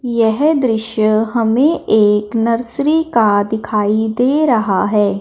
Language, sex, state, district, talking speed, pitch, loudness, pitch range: Hindi, male, Punjab, Fazilka, 115 wpm, 225 Hz, -14 LUFS, 215-245 Hz